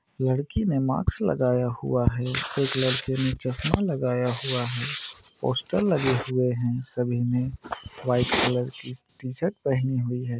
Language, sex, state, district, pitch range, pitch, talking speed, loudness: Hindi, male, Maharashtra, Nagpur, 125-130 Hz, 125 Hz, 155 wpm, -25 LUFS